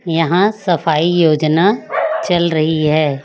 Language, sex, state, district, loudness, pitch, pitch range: Hindi, female, Chhattisgarh, Raipur, -14 LUFS, 165 Hz, 155-175 Hz